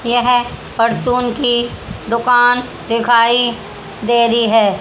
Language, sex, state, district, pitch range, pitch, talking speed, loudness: Hindi, female, Haryana, Rohtak, 230-245 Hz, 240 Hz, 100 wpm, -14 LUFS